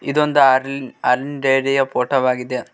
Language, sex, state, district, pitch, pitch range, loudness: Kannada, male, Karnataka, Koppal, 135 Hz, 125-140 Hz, -17 LUFS